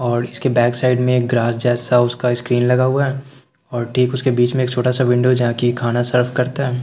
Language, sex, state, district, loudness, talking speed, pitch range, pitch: Hindi, male, Bihar, Patna, -17 LUFS, 245 wpm, 120-130 Hz, 125 Hz